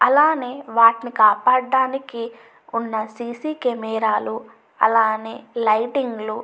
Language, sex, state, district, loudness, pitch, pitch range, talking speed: Telugu, female, Andhra Pradesh, Chittoor, -20 LUFS, 230 Hz, 220-255 Hz, 85 wpm